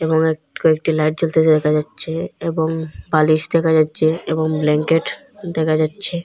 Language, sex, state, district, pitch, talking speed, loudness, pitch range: Bengali, female, Assam, Hailakandi, 160 Hz, 145 wpm, -17 LUFS, 155-165 Hz